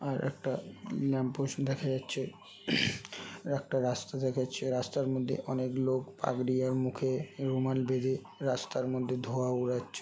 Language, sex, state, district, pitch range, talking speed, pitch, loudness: Bengali, male, West Bengal, Jhargram, 130-135 Hz, 145 wpm, 130 Hz, -33 LUFS